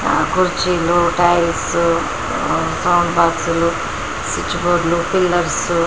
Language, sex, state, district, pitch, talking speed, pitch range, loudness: Telugu, female, Andhra Pradesh, Srikakulam, 175 Hz, 80 wpm, 170-175 Hz, -16 LUFS